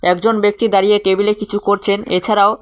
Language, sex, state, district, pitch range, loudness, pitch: Bengali, male, West Bengal, Cooch Behar, 200-210 Hz, -15 LUFS, 205 Hz